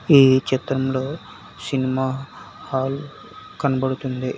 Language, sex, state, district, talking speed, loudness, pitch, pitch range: Telugu, male, Telangana, Hyderabad, 70 wpm, -21 LUFS, 130 Hz, 130-140 Hz